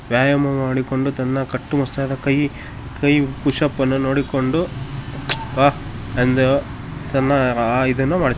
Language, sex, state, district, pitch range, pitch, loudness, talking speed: Kannada, male, Karnataka, Shimoga, 130-140 Hz, 135 Hz, -19 LUFS, 115 wpm